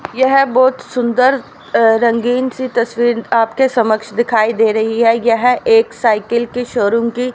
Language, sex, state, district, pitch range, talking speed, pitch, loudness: Hindi, female, Haryana, Rohtak, 230-255 Hz, 155 wpm, 235 Hz, -14 LUFS